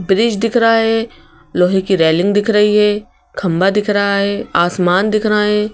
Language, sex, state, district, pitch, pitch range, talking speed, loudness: Hindi, female, Madhya Pradesh, Bhopal, 205 Hz, 190-215 Hz, 190 wpm, -14 LUFS